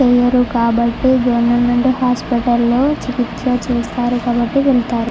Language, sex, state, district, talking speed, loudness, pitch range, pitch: Telugu, female, Andhra Pradesh, Chittoor, 80 wpm, -15 LUFS, 240-250 Hz, 245 Hz